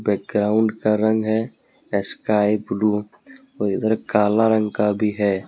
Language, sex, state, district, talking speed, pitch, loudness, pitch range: Hindi, male, Jharkhand, Deoghar, 145 wpm, 105 Hz, -20 LUFS, 105-110 Hz